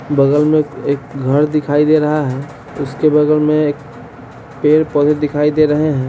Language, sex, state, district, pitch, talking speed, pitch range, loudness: Hindi, male, Bihar, Sitamarhi, 145 Hz, 180 wpm, 140-150 Hz, -14 LUFS